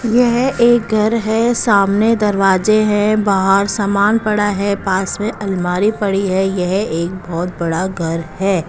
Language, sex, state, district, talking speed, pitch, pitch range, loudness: Hindi, female, Punjab, Kapurthala, 150 wpm, 200 Hz, 190-215 Hz, -15 LUFS